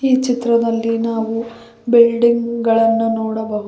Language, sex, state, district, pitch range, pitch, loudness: Kannada, female, Karnataka, Koppal, 225-235 Hz, 230 Hz, -16 LUFS